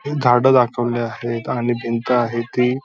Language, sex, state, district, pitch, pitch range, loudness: Marathi, male, Maharashtra, Dhule, 120 Hz, 115-125 Hz, -18 LUFS